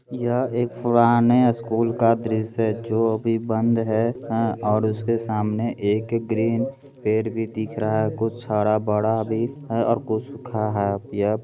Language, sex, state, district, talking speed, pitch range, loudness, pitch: Hindi, male, Bihar, Begusarai, 165 wpm, 110-115 Hz, -22 LUFS, 115 Hz